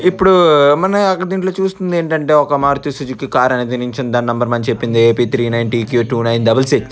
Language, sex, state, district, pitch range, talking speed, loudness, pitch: Telugu, male, Andhra Pradesh, Krishna, 120-170 Hz, 215 wpm, -14 LUFS, 135 Hz